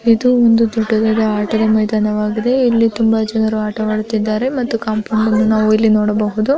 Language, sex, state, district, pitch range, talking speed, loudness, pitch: Kannada, female, Karnataka, Bijapur, 215-230 Hz, 135 wpm, -15 LUFS, 220 Hz